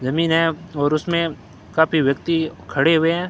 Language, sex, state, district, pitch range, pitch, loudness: Hindi, male, Rajasthan, Bikaner, 155-165 Hz, 160 Hz, -20 LUFS